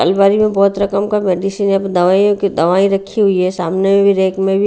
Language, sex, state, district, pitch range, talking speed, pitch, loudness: Hindi, female, Haryana, Rohtak, 190-200 Hz, 230 wpm, 195 Hz, -14 LUFS